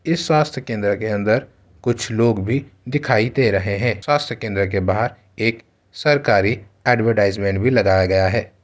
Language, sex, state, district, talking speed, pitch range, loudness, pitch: Hindi, male, Uttar Pradesh, Ghazipur, 160 wpm, 100-125 Hz, -19 LUFS, 110 Hz